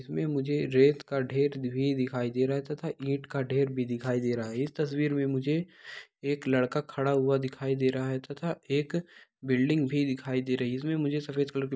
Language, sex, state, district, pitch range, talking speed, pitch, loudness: Hindi, male, Bihar, Samastipur, 130-145 Hz, 235 wpm, 135 Hz, -30 LUFS